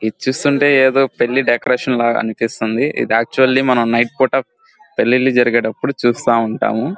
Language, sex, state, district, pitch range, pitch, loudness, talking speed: Telugu, male, Andhra Pradesh, Guntur, 115-135 Hz, 125 Hz, -15 LUFS, 145 wpm